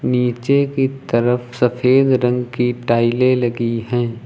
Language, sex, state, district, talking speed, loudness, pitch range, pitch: Hindi, male, Uttar Pradesh, Lucknow, 125 wpm, -17 LUFS, 120-130 Hz, 125 Hz